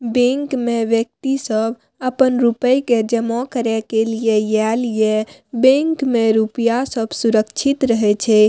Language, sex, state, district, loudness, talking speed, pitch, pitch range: Maithili, female, Bihar, Madhepura, -17 LUFS, 140 wpm, 235 Hz, 220-255 Hz